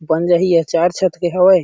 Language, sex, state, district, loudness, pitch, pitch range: Chhattisgarhi, male, Chhattisgarh, Sarguja, -15 LUFS, 175 Hz, 170-180 Hz